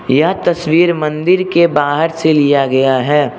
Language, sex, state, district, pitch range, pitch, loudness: Hindi, male, Arunachal Pradesh, Lower Dibang Valley, 145-170 Hz, 155 Hz, -13 LUFS